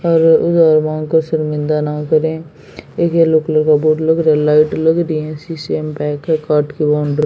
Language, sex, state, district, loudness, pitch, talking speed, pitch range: Hindi, female, Haryana, Jhajjar, -14 LUFS, 155 Hz, 205 wpm, 150-160 Hz